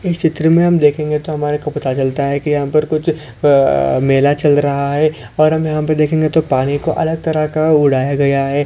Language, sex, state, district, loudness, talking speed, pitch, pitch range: Hindi, male, Maharashtra, Sindhudurg, -15 LUFS, 235 wpm, 150 Hz, 140-155 Hz